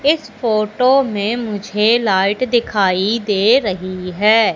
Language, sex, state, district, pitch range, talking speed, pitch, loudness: Hindi, female, Madhya Pradesh, Katni, 200-235 Hz, 120 wpm, 215 Hz, -16 LUFS